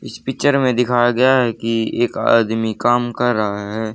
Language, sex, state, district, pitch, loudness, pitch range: Hindi, male, Haryana, Rohtak, 120 Hz, -17 LUFS, 110-125 Hz